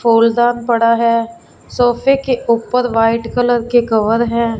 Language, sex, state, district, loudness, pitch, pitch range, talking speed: Hindi, female, Punjab, Fazilka, -14 LUFS, 235 Hz, 230-240 Hz, 145 wpm